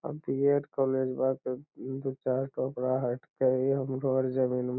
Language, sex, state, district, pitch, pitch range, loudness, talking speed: Magahi, male, Bihar, Lakhisarai, 130 Hz, 130-135 Hz, -30 LUFS, 165 wpm